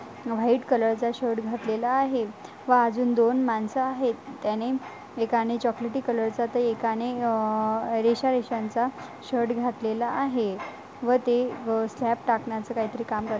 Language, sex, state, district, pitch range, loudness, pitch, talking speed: Marathi, female, Maharashtra, Dhule, 225-250 Hz, -26 LUFS, 235 Hz, 150 wpm